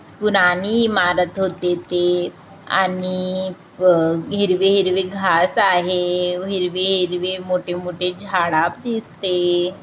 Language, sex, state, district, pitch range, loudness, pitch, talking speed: Marathi, female, Maharashtra, Chandrapur, 180-190 Hz, -19 LUFS, 180 Hz, 100 wpm